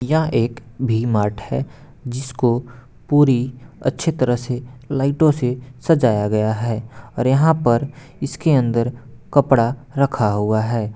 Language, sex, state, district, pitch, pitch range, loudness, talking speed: Hindi, male, Bihar, Gopalganj, 125 Hz, 115-140 Hz, -19 LUFS, 130 wpm